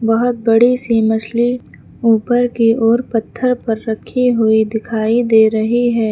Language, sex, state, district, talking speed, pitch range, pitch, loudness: Hindi, female, Uttar Pradesh, Lucknow, 145 wpm, 220-245 Hz, 230 Hz, -15 LUFS